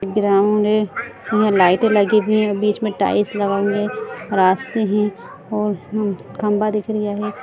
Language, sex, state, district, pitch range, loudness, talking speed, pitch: Hindi, female, Bihar, Lakhisarai, 200-215 Hz, -18 LUFS, 160 wpm, 210 Hz